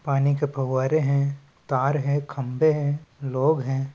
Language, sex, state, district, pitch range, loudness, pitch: Chhattisgarhi, male, Chhattisgarh, Balrampur, 135-145 Hz, -24 LUFS, 140 Hz